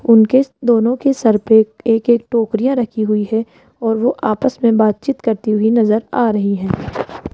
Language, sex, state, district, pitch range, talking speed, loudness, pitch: Hindi, female, Rajasthan, Jaipur, 215-245 Hz, 180 wpm, -15 LUFS, 225 Hz